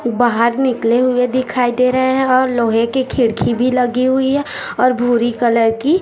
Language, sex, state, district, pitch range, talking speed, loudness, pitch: Hindi, female, Chhattisgarh, Raipur, 235-260 Hz, 190 wpm, -15 LUFS, 250 Hz